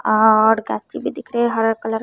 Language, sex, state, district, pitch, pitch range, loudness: Hindi, female, Bihar, West Champaran, 225 Hz, 220-225 Hz, -18 LUFS